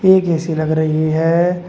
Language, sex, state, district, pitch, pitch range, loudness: Hindi, male, Uttar Pradesh, Shamli, 165 Hz, 155-175 Hz, -16 LUFS